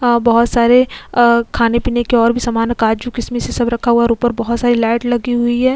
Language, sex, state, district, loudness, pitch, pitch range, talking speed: Hindi, female, Goa, North and South Goa, -14 LUFS, 240 Hz, 235-240 Hz, 250 wpm